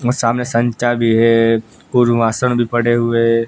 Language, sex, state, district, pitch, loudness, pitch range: Hindi, male, Gujarat, Gandhinagar, 115 Hz, -15 LUFS, 115-120 Hz